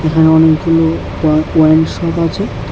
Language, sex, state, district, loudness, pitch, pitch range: Bengali, male, Tripura, West Tripura, -12 LUFS, 160 Hz, 155-165 Hz